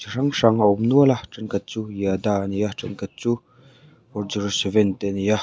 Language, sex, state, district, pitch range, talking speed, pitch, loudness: Mizo, male, Mizoram, Aizawl, 100-125 Hz, 255 wpm, 105 Hz, -22 LUFS